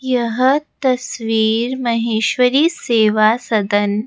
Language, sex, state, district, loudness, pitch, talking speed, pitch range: Hindi, female, Rajasthan, Jaipur, -16 LUFS, 235 Hz, 75 wpm, 220-255 Hz